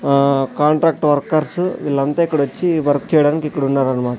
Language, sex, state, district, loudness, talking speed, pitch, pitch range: Telugu, male, Andhra Pradesh, Sri Satya Sai, -17 LUFS, 115 wpm, 145 Hz, 140-155 Hz